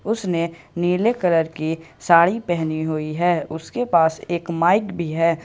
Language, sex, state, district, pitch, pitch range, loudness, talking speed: Hindi, male, Jharkhand, Ranchi, 170 Hz, 160-175 Hz, -20 LUFS, 155 wpm